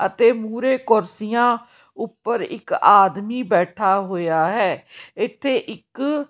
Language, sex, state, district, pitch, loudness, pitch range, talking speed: Punjabi, female, Punjab, Kapurthala, 225 Hz, -19 LUFS, 195-240 Hz, 105 wpm